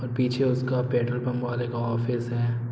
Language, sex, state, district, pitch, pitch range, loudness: Hindi, male, Bihar, Araria, 120 Hz, 120-125 Hz, -26 LUFS